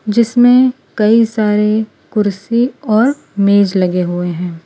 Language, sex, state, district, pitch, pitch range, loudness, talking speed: Hindi, female, Gujarat, Valsad, 215 Hz, 195-235 Hz, -13 LUFS, 115 wpm